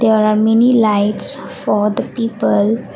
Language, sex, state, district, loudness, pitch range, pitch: English, female, Assam, Kamrup Metropolitan, -15 LUFS, 210-230 Hz, 220 Hz